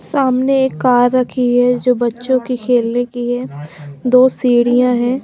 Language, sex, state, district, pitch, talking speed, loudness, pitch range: Hindi, female, Himachal Pradesh, Shimla, 245 Hz, 160 wpm, -14 LUFS, 245-255 Hz